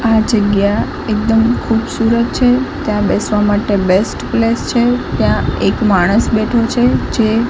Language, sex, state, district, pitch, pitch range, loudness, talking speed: Gujarati, female, Gujarat, Gandhinagar, 225 Hz, 210-235 Hz, -14 LUFS, 135 wpm